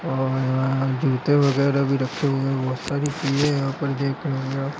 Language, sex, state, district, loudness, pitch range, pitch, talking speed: Hindi, male, Uttar Pradesh, Budaun, -22 LUFS, 135-140 Hz, 135 Hz, 225 wpm